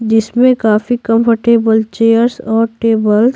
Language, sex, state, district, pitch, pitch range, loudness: Hindi, female, Bihar, Patna, 225 Hz, 220-235 Hz, -12 LUFS